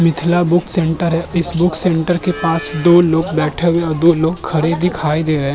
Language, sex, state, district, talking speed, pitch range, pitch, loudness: Hindi, male, Uttar Pradesh, Muzaffarnagar, 225 wpm, 160-175 Hz, 170 Hz, -15 LUFS